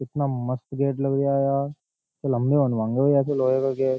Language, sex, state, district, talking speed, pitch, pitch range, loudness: Hindi, male, Uttar Pradesh, Jyotiba Phule Nagar, 210 wpm, 135 Hz, 130-140 Hz, -23 LUFS